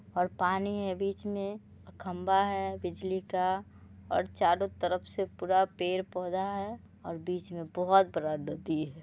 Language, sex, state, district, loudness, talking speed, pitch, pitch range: Hindi, female, Bihar, Muzaffarpur, -32 LUFS, 155 wpm, 185 Hz, 180-195 Hz